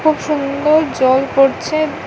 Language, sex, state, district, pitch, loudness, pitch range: Bengali, female, Tripura, West Tripura, 295 Hz, -15 LUFS, 275-310 Hz